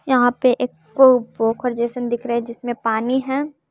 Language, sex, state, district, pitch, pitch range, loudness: Hindi, male, Bihar, West Champaran, 245 Hz, 235-255 Hz, -19 LUFS